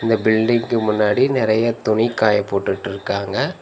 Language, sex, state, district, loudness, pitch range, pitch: Tamil, male, Tamil Nadu, Nilgiris, -18 LUFS, 110-115 Hz, 110 Hz